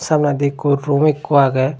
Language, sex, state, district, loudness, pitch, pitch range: Chakma, male, Tripura, Dhalai, -16 LUFS, 145 Hz, 140-150 Hz